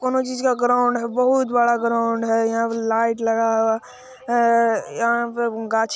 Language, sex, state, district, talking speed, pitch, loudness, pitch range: Hindi, male, Bihar, Araria, 180 wpm, 235 Hz, -20 LUFS, 225-245 Hz